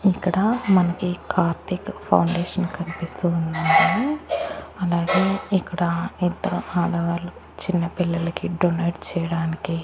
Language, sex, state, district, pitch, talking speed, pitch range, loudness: Telugu, female, Andhra Pradesh, Annamaya, 175 Hz, 90 wpm, 170-190 Hz, -23 LUFS